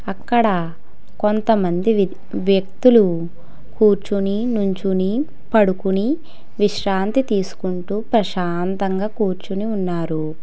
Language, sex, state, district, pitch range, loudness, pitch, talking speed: Telugu, female, Telangana, Hyderabad, 185-215 Hz, -19 LUFS, 195 Hz, 75 wpm